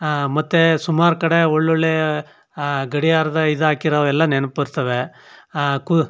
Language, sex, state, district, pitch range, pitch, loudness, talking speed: Kannada, male, Karnataka, Chamarajanagar, 145-160 Hz, 155 Hz, -18 LUFS, 155 wpm